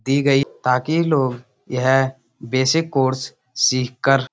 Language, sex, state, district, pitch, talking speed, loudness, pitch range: Hindi, male, Uttar Pradesh, Budaun, 130 Hz, 125 wpm, -19 LUFS, 125-135 Hz